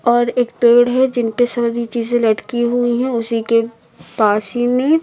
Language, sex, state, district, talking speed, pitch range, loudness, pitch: Hindi, female, Uttar Pradesh, Lucknow, 180 wpm, 230-245 Hz, -16 LUFS, 240 Hz